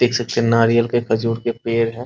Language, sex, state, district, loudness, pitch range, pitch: Hindi, male, Bihar, Muzaffarpur, -18 LUFS, 115-120 Hz, 115 Hz